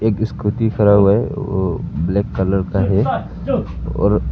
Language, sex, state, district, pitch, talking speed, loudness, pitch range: Hindi, male, Arunachal Pradesh, Papum Pare, 100 Hz, 155 wpm, -18 LUFS, 95-110 Hz